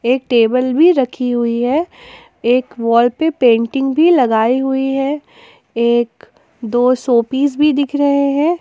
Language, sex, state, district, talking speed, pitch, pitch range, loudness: Hindi, female, Jharkhand, Ranchi, 155 wpm, 265 Hz, 240-300 Hz, -14 LUFS